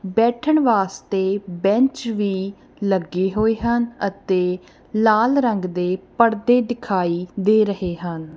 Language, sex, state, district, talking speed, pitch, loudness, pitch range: Punjabi, female, Punjab, Kapurthala, 115 wpm, 200 Hz, -20 LUFS, 185-230 Hz